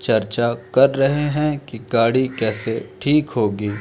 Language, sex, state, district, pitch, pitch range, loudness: Hindi, male, Madhya Pradesh, Umaria, 120 Hz, 110-140 Hz, -19 LUFS